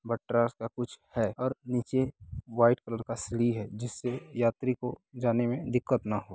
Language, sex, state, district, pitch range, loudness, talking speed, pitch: Hindi, male, Bihar, Bhagalpur, 115-125 Hz, -31 LUFS, 180 wpm, 120 Hz